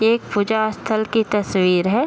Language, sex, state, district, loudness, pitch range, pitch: Hindi, female, Bihar, Saharsa, -19 LUFS, 205-220 Hz, 215 Hz